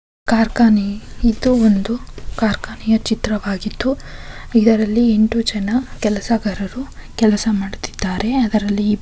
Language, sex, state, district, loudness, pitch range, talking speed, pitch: Kannada, female, Karnataka, Mysore, -17 LUFS, 205-230 Hz, 195 wpm, 220 Hz